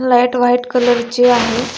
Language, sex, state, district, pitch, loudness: Marathi, female, Maharashtra, Dhule, 245 Hz, -13 LUFS